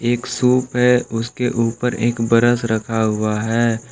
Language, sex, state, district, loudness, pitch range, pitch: Hindi, male, Jharkhand, Palamu, -18 LUFS, 115-125 Hz, 120 Hz